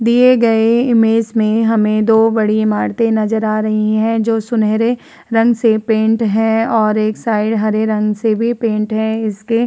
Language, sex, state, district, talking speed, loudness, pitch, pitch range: Hindi, female, Uttar Pradesh, Varanasi, 180 wpm, -14 LUFS, 220 Hz, 215-225 Hz